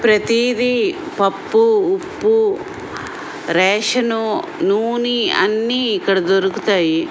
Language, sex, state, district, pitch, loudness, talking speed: Telugu, female, Andhra Pradesh, Srikakulam, 235 Hz, -16 LUFS, 65 wpm